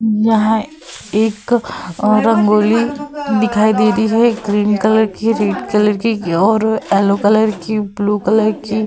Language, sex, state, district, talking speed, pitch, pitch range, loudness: Hindi, female, Uttar Pradesh, Hamirpur, 155 wpm, 215 Hz, 210-225 Hz, -14 LUFS